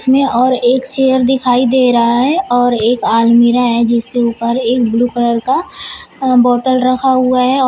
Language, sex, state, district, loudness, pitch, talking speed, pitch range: Hindi, female, Uttar Pradesh, Shamli, -12 LUFS, 245 Hz, 180 wpm, 235-260 Hz